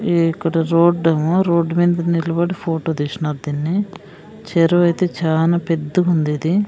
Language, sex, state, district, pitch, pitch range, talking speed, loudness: Telugu, female, Andhra Pradesh, Sri Satya Sai, 170 Hz, 160-175 Hz, 125 wpm, -18 LUFS